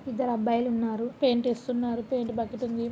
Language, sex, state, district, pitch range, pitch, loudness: Telugu, female, Andhra Pradesh, Guntur, 235-250 Hz, 240 Hz, -28 LUFS